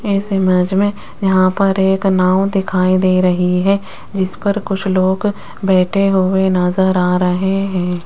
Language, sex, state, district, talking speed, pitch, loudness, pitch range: Hindi, female, Rajasthan, Jaipur, 155 wpm, 190 Hz, -15 LUFS, 185-195 Hz